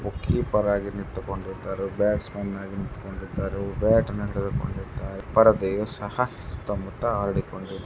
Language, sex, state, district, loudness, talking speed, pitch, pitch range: Kannada, male, Karnataka, Bellary, -26 LUFS, 75 wpm, 100 Hz, 95-105 Hz